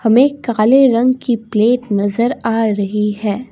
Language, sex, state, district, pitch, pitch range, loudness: Hindi, female, Assam, Kamrup Metropolitan, 225 Hz, 210-250 Hz, -15 LUFS